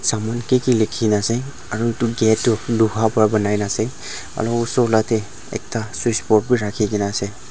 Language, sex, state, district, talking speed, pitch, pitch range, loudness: Nagamese, male, Nagaland, Dimapur, 190 wpm, 110 Hz, 105-120 Hz, -19 LUFS